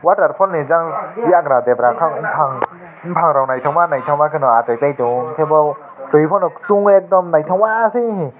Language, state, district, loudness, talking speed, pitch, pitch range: Kokborok, Tripura, West Tripura, -15 LUFS, 165 wpm, 155 Hz, 140-185 Hz